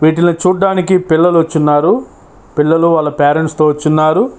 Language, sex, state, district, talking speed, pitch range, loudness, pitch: Telugu, male, Andhra Pradesh, Chittoor, 135 wpm, 155-175 Hz, -12 LUFS, 160 Hz